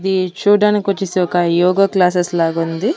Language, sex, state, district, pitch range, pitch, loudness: Telugu, female, Andhra Pradesh, Annamaya, 175-195 Hz, 180 Hz, -15 LUFS